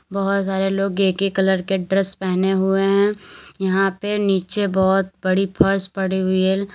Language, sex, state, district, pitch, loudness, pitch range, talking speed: Hindi, female, Uttar Pradesh, Lalitpur, 195 Hz, -19 LUFS, 190-195 Hz, 180 wpm